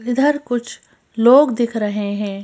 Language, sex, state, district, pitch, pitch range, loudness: Hindi, female, Madhya Pradesh, Bhopal, 235 Hz, 210-255 Hz, -17 LUFS